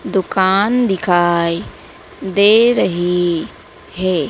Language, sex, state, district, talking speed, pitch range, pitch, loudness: Hindi, female, Madhya Pradesh, Dhar, 70 wpm, 175-200 Hz, 185 Hz, -15 LUFS